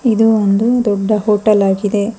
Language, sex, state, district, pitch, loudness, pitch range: Kannada, female, Karnataka, Bangalore, 210 Hz, -13 LUFS, 205-225 Hz